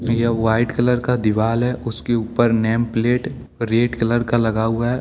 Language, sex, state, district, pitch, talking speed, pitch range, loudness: Hindi, male, Jharkhand, Deoghar, 115 Hz, 190 wpm, 115-120 Hz, -19 LUFS